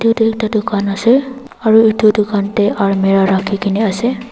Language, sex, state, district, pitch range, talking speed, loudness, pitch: Nagamese, female, Nagaland, Dimapur, 200-230 Hz, 165 wpm, -14 LUFS, 215 Hz